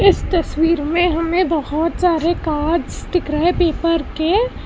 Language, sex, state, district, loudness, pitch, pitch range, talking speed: Hindi, female, Karnataka, Bangalore, -18 LUFS, 335 Hz, 320-355 Hz, 155 wpm